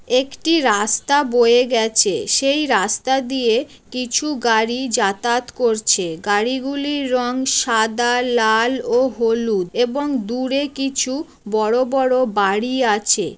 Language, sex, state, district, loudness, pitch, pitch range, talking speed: Bengali, female, West Bengal, Jalpaiguri, -18 LUFS, 250 Hz, 225-265 Hz, 110 wpm